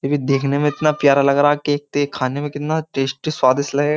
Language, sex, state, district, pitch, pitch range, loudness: Hindi, male, Uttar Pradesh, Jyotiba Phule Nagar, 145 Hz, 140-150 Hz, -18 LUFS